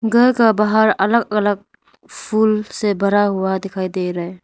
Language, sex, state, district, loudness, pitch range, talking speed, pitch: Hindi, female, Arunachal Pradesh, Lower Dibang Valley, -17 LUFS, 190-220 Hz, 175 wpm, 205 Hz